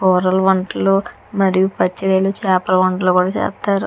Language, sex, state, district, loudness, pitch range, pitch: Telugu, female, Andhra Pradesh, Chittoor, -16 LUFS, 185-195 Hz, 190 Hz